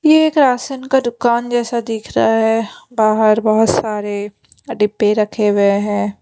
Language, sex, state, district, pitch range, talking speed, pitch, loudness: Hindi, female, Punjab, Pathankot, 210-240 Hz, 155 wpm, 220 Hz, -15 LUFS